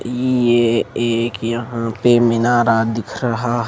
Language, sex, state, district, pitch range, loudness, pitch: Hindi, male, Maharashtra, Mumbai Suburban, 115-120 Hz, -17 LUFS, 120 Hz